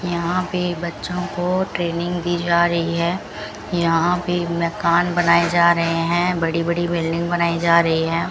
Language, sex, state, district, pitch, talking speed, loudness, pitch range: Hindi, female, Rajasthan, Bikaner, 170 Hz, 165 wpm, -19 LUFS, 170-175 Hz